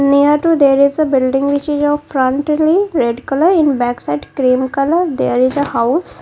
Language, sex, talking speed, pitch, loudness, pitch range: English, female, 205 wpm, 280 Hz, -14 LUFS, 260-300 Hz